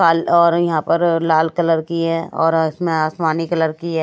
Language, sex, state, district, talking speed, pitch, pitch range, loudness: Hindi, female, Haryana, Jhajjar, 210 wpm, 165 Hz, 160-170 Hz, -17 LUFS